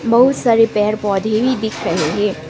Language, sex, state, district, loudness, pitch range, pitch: Hindi, female, Sikkim, Gangtok, -16 LUFS, 205-230 Hz, 215 Hz